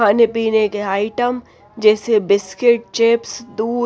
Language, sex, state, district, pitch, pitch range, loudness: Hindi, female, Haryana, Rohtak, 225 Hz, 210-235 Hz, -17 LUFS